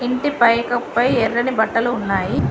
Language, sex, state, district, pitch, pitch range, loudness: Telugu, female, Telangana, Mahabubabad, 235 Hz, 230-245 Hz, -18 LUFS